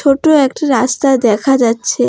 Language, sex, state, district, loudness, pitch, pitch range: Bengali, female, West Bengal, Alipurduar, -12 LUFS, 265 Hz, 240-275 Hz